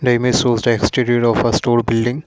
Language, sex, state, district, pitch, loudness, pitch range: English, male, Assam, Kamrup Metropolitan, 120 Hz, -16 LUFS, 115-125 Hz